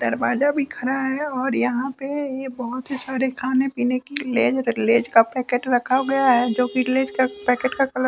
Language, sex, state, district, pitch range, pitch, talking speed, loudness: Hindi, male, Bihar, West Champaran, 250-270 Hz, 260 Hz, 210 wpm, -21 LUFS